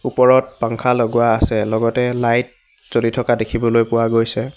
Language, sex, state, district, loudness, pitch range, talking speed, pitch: Assamese, male, Assam, Hailakandi, -17 LUFS, 115-125 Hz, 145 wpm, 115 Hz